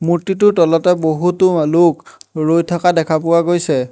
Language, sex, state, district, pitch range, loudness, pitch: Assamese, male, Assam, Hailakandi, 160-175 Hz, -14 LUFS, 170 Hz